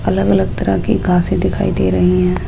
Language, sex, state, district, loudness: Hindi, female, Rajasthan, Jaipur, -15 LUFS